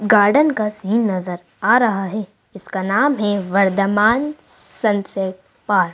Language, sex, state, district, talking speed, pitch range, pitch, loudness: Hindi, female, Madhya Pradesh, Bhopal, 140 wpm, 190-220 Hz, 205 Hz, -18 LUFS